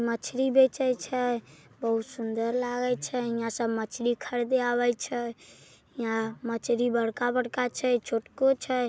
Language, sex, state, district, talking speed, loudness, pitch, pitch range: Maithili, female, Bihar, Samastipur, 130 wpm, -28 LUFS, 245 Hz, 230-250 Hz